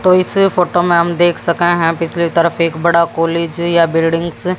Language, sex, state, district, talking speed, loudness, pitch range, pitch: Hindi, female, Haryana, Jhajjar, 220 wpm, -14 LUFS, 165-175 Hz, 170 Hz